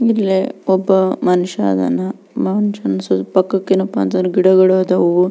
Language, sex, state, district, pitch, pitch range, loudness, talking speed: Kannada, female, Karnataka, Belgaum, 185 Hz, 180-190 Hz, -15 LUFS, 115 wpm